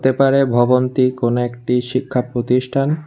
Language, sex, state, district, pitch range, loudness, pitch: Bengali, male, Tripura, West Tripura, 125-135 Hz, -17 LUFS, 125 Hz